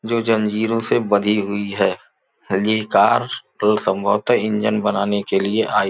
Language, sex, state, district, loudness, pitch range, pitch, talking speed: Hindi, male, Uttar Pradesh, Gorakhpur, -19 LUFS, 100-110 Hz, 105 Hz, 160 wpm